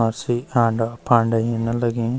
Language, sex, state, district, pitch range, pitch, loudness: Garhwali, male, Uttarakhand, Uttarkashi, 115-120 Hz, 115 Hz, -20 LUFS